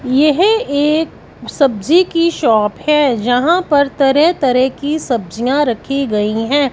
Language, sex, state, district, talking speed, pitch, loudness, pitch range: Hindi, female, Punjab, Fazilka, 135 wpm, 280 Hz, -14 LUFS, 245-305 Hz